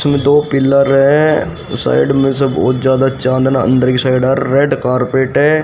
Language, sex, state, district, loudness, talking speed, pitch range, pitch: Hindi, male, Haryana, Rohtak, -12 LUFS, 170 wpm, 130-140 Hz, 135 Hz